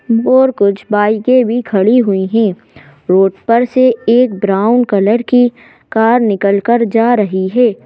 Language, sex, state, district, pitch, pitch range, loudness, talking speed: Hindi, female, Madhya Pradesh, Bhopal, 225 Hz, 200-240 Hz, -12 LUFS, 145 wpm